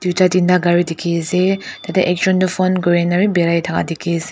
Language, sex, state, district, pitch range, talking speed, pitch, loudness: Nagamese, female, Nagaland, Dimapur, 170-185 Hz, 195 wpm, 180 Hz, -16 LUFS